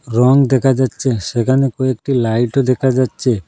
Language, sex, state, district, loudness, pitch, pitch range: Bengali, male, Assam, Hailakandi, -15 LUFS, 130 Hz, 120-130 Hz